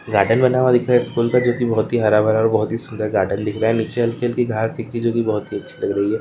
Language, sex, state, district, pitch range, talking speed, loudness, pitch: Hindi, male, Rajasthan, Churu, 110-120 Hz, 355 wpm, -18 LUFS, 115 Hz